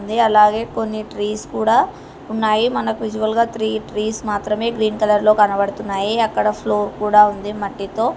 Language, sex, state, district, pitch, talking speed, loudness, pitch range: Telugu, female, Telangana, Hyderabad, 215 Hz, 145 wpm, -18 LUFS, 210-220 Hz